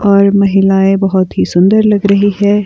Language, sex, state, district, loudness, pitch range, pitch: Hindi, female, Himachal Pradesh, Shimla, -10 LUFS, 195-205 Hz, 200 Hz